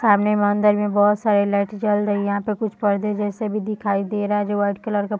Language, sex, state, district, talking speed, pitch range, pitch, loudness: Hindi, female, Bihar, Bhagalpur, 275 wpm, 205-210 Hz, 205 Hz, -20 LUFS